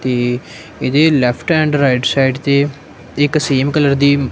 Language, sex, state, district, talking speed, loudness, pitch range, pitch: Punjabi, male, Punjab, Kapurthala, 155 wpm, -14 LUFS, 130-150 Hz, 140 Hz